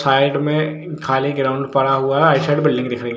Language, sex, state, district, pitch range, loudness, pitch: Hindi, male, Jharkhand, Jamtara, 135-150 Hz, -17 LUFS, 140 Hz